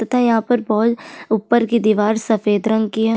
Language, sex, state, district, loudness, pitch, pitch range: Hindi, female, Chhattisgarh, Sukma, -17 LUFS, 220 Hz, 215-235 Hz